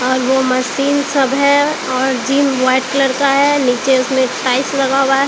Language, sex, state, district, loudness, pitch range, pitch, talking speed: Hindi, female, Bihar, Katihar, -14 LUFS, 260-280 Hz, 270 Hz, 195 wpm